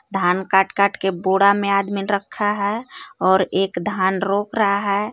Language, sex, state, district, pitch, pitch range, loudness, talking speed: Hindi, female, Jharkhand, Garhwa, 200 Hz, 190-205 Hz, -19 LUFS, 175 wpm